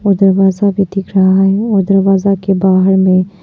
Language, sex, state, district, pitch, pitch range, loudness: Hindi, female, Arunachal Pradesh, Papum Pare, 195 Hz, 190-195 Hz, -11 LUFS